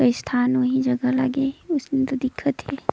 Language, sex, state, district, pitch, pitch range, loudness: Surgujia, female, Chhattisgarh, Sarguja, 255 Hz, 250-265 Hz, -23 LUFS